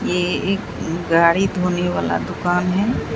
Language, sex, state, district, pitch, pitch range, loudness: Hindi, female, Bihar, Katihar, 180 Hz, 175-190 Hz, -19 LUFS